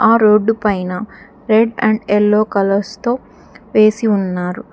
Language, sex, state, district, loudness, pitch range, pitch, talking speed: Telugu, female, Telangana, Hyderabad, -15 LUFS, 200-225 Hz, 215 Hz, 125 wpm